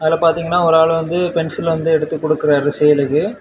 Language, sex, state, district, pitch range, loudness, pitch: Tamil, male, Tamil Nadu, Kanyakumari, 155-165 Hz, -15 LUFS, 160 Hz